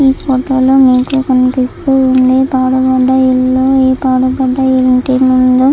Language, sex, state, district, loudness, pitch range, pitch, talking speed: Telugu, female, Andhra Pradesh, Chittoor, -10 LUFS, 255-265 Hz, 260 Hz, 125 wpm